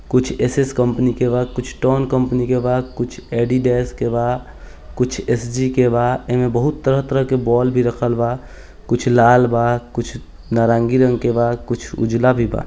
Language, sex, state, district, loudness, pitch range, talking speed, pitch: Hindi, male, Bihar, East Champaran, -17 LUFS, 120-125 Hz, 190 wpm, 125 Hz